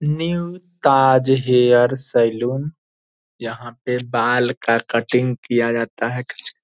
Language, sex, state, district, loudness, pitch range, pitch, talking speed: Hindi, male, Bihar, Purnia, -18 LUFS, 115-135 Hz, 125 Hz, 110 wpm